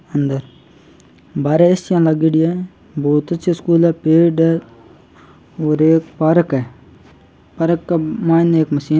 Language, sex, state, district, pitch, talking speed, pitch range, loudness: Marwari, male, Rajasthan, Churu, 165 Hz, 140 wpm, 155-170 Hz, -16 LUFS